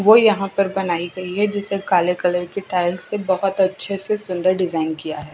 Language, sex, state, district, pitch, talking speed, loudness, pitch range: Hindi, female, Odisha, Khordha, 185 Hz, 215 wpm, -20 LUFS, 180-200 Hz